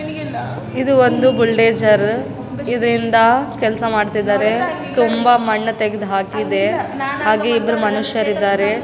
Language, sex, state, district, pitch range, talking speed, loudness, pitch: Kannada, female, Karnataka, Raichur, 210-235 Hz, 95 wpm, -16 LUFS, 225 Hz